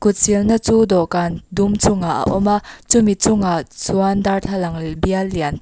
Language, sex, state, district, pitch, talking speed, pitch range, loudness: Mizo, female, Mizoram, Aizawl, 195 Hz, 170 wpm, 175-205 Hz, -17 LUFS